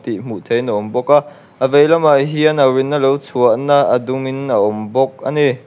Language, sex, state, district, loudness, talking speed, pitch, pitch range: Mizo, male, Mizoram, Aizawl, -15 LUFS, 245 wpm, 135 Hz, 130-145 Hz